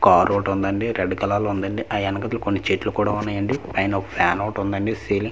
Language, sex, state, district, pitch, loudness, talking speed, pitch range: Telugu, male, Andhra Pradesh, Manyam, 100 Hz, -22 LUFS, 225 wpm, 100-105 Hz